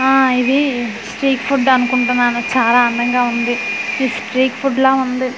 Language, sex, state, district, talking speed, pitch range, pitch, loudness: Telugu, female, Andhra Pradesh, Manyam, 145 wpm, 240-265 Hz, 255 Hz, -15 LUFS